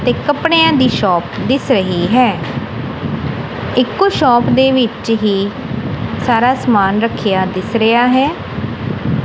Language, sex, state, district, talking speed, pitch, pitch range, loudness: Punjabi, female, Punjab, Kapurthala, 115 wpm, 230 Hz, 195-260 Hz, -14 LUFS